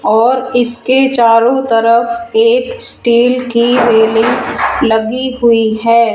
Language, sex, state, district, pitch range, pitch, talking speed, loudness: Hindi, female, Rajasthan, Jaipur, 230-255 Hz, 240 Hz, 105 wpm, -11 LUFS